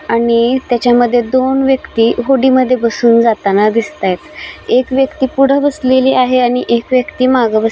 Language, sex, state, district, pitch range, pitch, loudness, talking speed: Marathi, female, Maharashtra, Solapur, 230-260 Hz, 250 Hz, -12 LUFS, 165 wpm